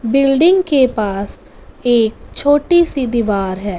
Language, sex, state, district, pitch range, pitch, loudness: Hindi, female, Punjab, Fazilka, 210-290 Hz, 245 Hz, -14 LUFS